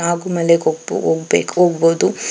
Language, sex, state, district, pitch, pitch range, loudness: Kannada, female, Karnataka, Chamarajanagar, 170 Hz, 165-170 Hz, -16 LUFS